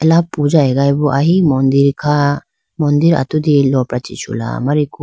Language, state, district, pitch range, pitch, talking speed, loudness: Idu Mishmi, Arunachal Pradesh, Lower Dibang Valley, 135-155 Hz, 145 Hz, 155 wpm, -14 LUFS